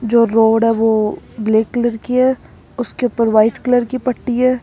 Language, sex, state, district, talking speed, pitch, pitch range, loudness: Hindi, female, Rajasthan, Jaipur, 195 wpm, 235 Hz, 225-250 Hz, -16 LUFS